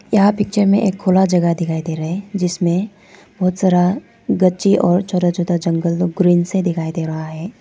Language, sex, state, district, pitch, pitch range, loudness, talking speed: Hindi, female, Arunachal Pradesh, Lower Dibang Valley, 180 Hz, 170-195 Hz, -17 LUFS, 190 wpm